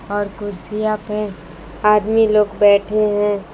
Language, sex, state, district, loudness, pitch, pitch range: Hindi, female, Jharkhand, Palamu, -17 LUFS, 205 Hz, 200-210 Hz